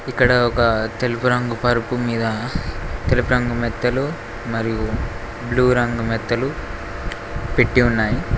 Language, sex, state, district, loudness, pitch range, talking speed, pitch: Telugu, male, Telangana, Mahabubabad, -20 LUFS, 110-125 Hz, 105 wpm, 120 Hz